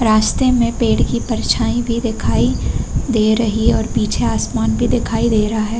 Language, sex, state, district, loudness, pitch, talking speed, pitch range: Hindi, female, Uttar Pradesh, Varanasi, -17 LUFS, 225 Hz, 175 wpm, 220-235 Hz